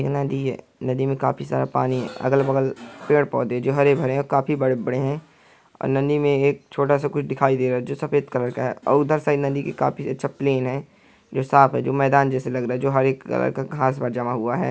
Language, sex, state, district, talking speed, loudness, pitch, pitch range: Hindi, male, Bihar, Araria, 240 wpm, -22 LUFS, 135 Hz, 130-140 Hz